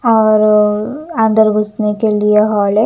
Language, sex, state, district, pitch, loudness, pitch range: Hindi, female, Punjab, Kapurthala, 215 Hz, -12 LUFS, 210-220 Hz